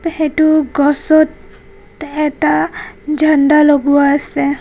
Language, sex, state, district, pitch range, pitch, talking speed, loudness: Assamese, female, Assam, Kamrup Metropolitan, 285-310 Hz, 300 Hz, 80 wpm, -13 LUFS